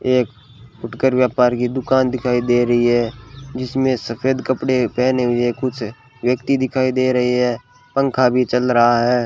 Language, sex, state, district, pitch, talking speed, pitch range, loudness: Hindi, male, Rajasthan, Bikaner, 125 Hz, 160 wpm, 120-130 Hz, -18 LUFS